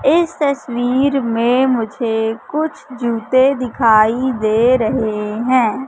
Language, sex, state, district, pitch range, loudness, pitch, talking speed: Hindi, female, Madhya Pradesh, Katni, 225-265 Hz, -16 LUFS, 245 Hz, 100 wpm